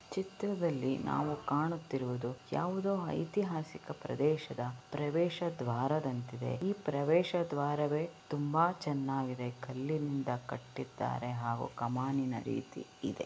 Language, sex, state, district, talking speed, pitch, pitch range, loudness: Kannada, female, Karnataka, Belgaum, 95 wpm, 145 Hz, 130-165 Hz, -36 LUFS